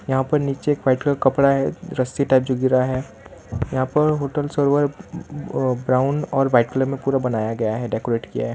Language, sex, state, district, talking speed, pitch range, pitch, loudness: Hindi, male, Gujarat, Valsad, 210 wpm, 130-145 Hz, 135 Hz, -21 LUFS